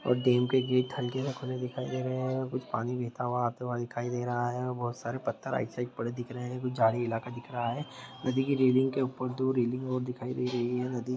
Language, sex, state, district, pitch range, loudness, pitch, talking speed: Hindi, male, Jharkhand, Sahebganj, 120-130 Hz, -31 LUFS, 125 Hz, 270 wpm